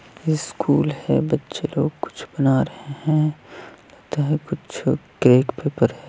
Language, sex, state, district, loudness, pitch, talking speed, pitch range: Hindi, male, Chhattisgarh, Balrampur, -22 LUFS, 150 Hz, 140 wpm, 140-155 Hz